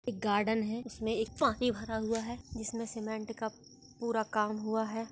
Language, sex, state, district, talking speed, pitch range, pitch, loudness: Hindi, female, Bihar, Muzaffarpur, 190 wpm, 220-230 Hz, 225 Hz, -34 LUFS